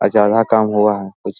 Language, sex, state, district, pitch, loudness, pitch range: Hindi, male, Bihar, Jahanabad, 105 Hz, -15 LUFS, 100-110 Hz